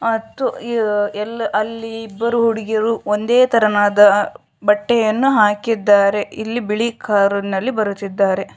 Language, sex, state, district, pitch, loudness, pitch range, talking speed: Kannada, female, Karnataka, Shimoga, 215 Hz, -17 LUFS, 205-230 Hz, 75 wpm